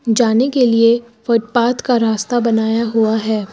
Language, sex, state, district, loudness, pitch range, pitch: Hindi, female, Uttar Pradesh, Lucknow, -15 LUFS, 225-240 Hz, 230 Hz